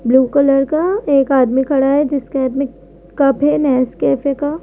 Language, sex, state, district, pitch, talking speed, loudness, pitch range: Hindi, female, Madhya Pradesh, Bhopal, 275 Hz, 180 wpm, -15 LUFS, 265-290 Hz